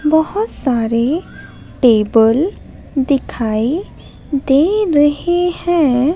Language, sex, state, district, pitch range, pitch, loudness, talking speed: Hindi, female, Madhya Pradesh, Katni, 245-335 Hz, 290 Hz, -15 LUFS, 70 wpm